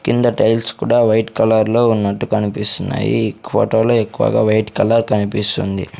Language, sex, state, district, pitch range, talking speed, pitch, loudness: Telugu, male, Andhra Pradesh, Sri Satya Sai, 105-115 Hz, 130 wpm, 110 Hz, -16 LUFS